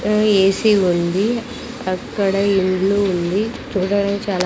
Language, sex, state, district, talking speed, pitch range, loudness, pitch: Telugu, female, Andhra Pradesh, Sri Satya Sai, 95 wpm, 190-210 Hz, -18 LUFS, 200 Hz